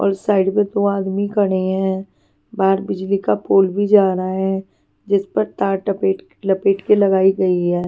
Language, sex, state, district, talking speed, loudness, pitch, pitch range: Hindi, female, Punjab, Pathankot, 185 wpm, -18 LUFS, 195 Hz, 190-200 Hz